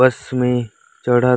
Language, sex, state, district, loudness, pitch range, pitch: Chhattisgarhi, male, Chhattisgarh, Raigarh, -19 LUFS, 120-125 Hz, 125 Hz